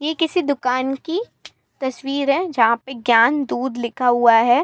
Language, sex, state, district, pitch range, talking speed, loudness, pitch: Hindi, female, Uttar Pradesh, Gorakhpur, 240-295 Hz, 170 wpm, -19 LUFS, 265 Hz